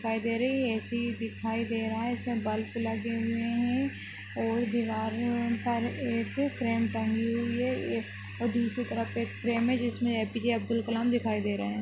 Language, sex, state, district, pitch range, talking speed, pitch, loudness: Hindi, female, Maharashtra, Solapur, 225-235 Hz, 200 wpm, 230 Hz, -31 LUFS